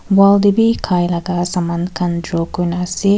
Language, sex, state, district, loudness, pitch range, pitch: Nagamese, female, Nagaland, Kohima, -16 LUFS, 175-200 Hz, 180 Hz